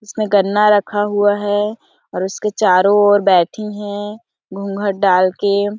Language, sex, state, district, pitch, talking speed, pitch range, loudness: Hindi, female, Chhattisgarh, Sarguja, 205 Hz, 145 wpm, 195-210 Hz, -15 LUFS